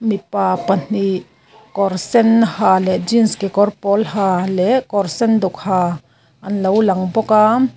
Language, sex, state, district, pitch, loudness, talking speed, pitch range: Mizo, female, Mizoram, Aizawl, 200 Hz, -16 LUFS, 140 wpm, 185-215 Hz